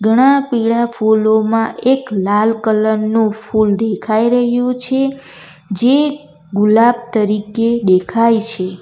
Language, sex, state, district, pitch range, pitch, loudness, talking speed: Gujarati, female, Gujarat, Valsad, 210-240 Hz, 220 Hz, -14 LUFS, 110 wpm